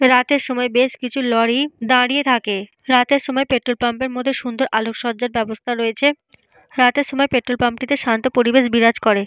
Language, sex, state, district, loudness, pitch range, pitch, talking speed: Bengali, female, Jharkhand, Jamtara, -18 LUFS, 235-265 Hz, 250 Hz, 175 wpm